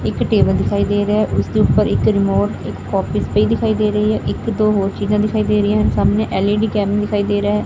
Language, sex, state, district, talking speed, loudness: Punjabi, female, Punjab, Fazilka, 260 wpm, -17 LUFS